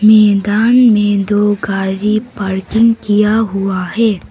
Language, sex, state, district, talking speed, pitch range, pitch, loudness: Hindi, female, Arunachal Pradesh, Papum Pare, 110 wpm, 200-220 Hz, 205 Hz, -13 LUFS